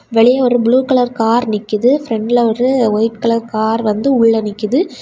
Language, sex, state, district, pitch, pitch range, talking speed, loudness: Tamil, female, Tamil Nadu, Kanyakumari, 230 Hz, 225-250 Hz, 165 wpm, -14 LUFS